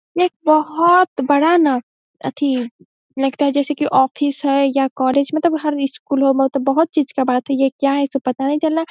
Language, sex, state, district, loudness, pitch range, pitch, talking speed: Hindi, female, Bihar, Saharsa, -17 LUFS, 270-310 Hz, 280 Hz, 200 wpm